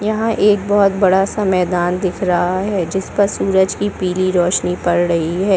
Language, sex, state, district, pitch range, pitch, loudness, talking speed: Hindi, female, Chhattisgarh, Bilaspur, 180-200 Hz, 190 Hz, -16 LUFS, 205 wpm